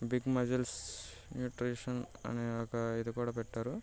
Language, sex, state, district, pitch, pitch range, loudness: Telugu, male, Andhra Pradesh, Guntur, 120 Hz, 115-125 Hz, -38 LUFS